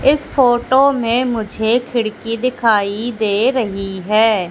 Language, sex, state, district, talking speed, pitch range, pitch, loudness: Hindi, female, Madhya Pradesh, Katni, 120 wpm, 215-250 Hz, 230 Hz, -16 LUFS